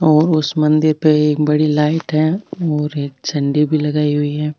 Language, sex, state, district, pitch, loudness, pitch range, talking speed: Marwari, female, Rajasthan, Nagaur, 150 Hz, -16 LUFS, 150-155 Hz, 195 wpm